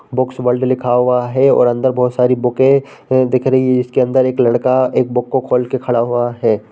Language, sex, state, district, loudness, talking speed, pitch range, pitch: Hindi, male, Bihar, Sitamarhi, -14 LUFS, 215 wpm, 125-130 Hz, 125 Hz